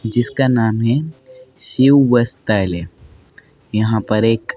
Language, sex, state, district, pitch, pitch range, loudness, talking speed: Hindi, male, Madhya Pradesh, Dhar, 120 Hz, 110-130 Hz, -15 LUFS, 105 wpm